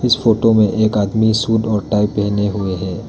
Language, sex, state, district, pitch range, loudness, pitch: Hindi, male, Arunachal Pradesh, Lower Dibang Valley, 105-110 Hz, -16 LUFS, 105 Hz